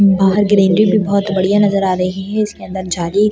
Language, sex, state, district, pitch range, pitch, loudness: Hindi, female, Delhi, New Delhi, 190-205 Hz, 200 Hz, -14 LUFS